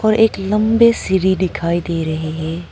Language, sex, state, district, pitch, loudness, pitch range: Hindi, female, Arunachal Pradesh, Papum Pare, 190 Hz, -16 LUFS, 165-215 Hz